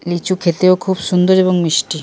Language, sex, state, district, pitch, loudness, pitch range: Bengali, male, Jharkhand, Jamtara, 180 Hz, -14 LUFS, 170-185 Hz